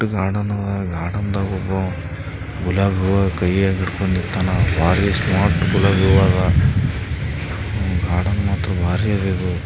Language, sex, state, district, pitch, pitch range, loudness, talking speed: Kannada, male, Karnataka, Bijapur, 95 Hz, 90-100 Hz, -19 LUFS, 110 wpm